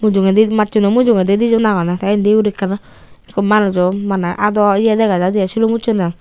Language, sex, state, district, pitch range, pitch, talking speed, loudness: Chakma, female, Tripura, Unakoti, 195-215 Hz, 205 Hz, 175 wpm, -14 LUFS